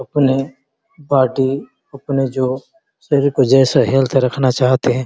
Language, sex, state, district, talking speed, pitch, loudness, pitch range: Hindi, male, Chhattisgarh, Bastar, 130 wpm, 135 Hz, -16 LUFS, 130-140 Hz